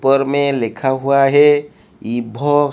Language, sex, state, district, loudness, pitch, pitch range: Hindi, male, Odisha, Malkangiri, -15 LUFS, 140 Hz, 130-145 Hz